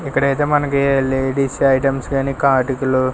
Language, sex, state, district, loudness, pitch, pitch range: Telugu, male, Andhra Pradesh, Sri Satya Sai, -17 LUFS, 135 Hz, 130-140 Hz